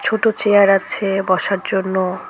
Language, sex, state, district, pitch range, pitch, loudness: Bengali, female, West Bengal, Cooch Behar, 190-210 Hz, 195 Hz, -17 LUFS